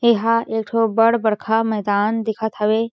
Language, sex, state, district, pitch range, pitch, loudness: Chhattisgarhi, female, Chhattisgarh, Jashpur, 215-230 Hz, 225 Hz, -19 LUFS